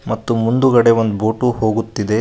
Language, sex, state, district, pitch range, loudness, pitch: Kannada, male, Karnataka, Koppal, 110-120 Hz, -16 LUFS, 115 Hz